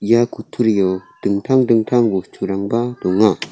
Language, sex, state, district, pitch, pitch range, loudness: Garo, male, Meghalaya, South Garo Hills, 110 Hz, 95-120 Hz, -17 LUFS